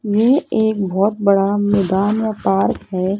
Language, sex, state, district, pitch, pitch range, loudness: Hindi, female, Rajasthan, Jaipur, 205 Hz, 195-220 Hz, -17 LUFS